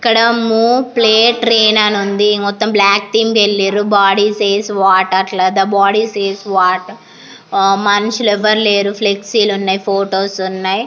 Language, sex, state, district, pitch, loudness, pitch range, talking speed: Telugu, female, Andhra Pradesh, Anantapur, 205 Hz, -12 LUFS, 195-220 Hz, 150 wpm